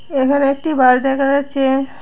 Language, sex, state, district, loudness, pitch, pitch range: Bengali, female, Tripura, West Tripura, -15 LUFS, 275 Hz, 270-280 Hz